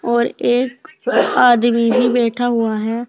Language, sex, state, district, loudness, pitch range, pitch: Hindi, female, Uttar Pradesh, Saharanpur, -16 LUFS, 235-245 Hz, 240 Hz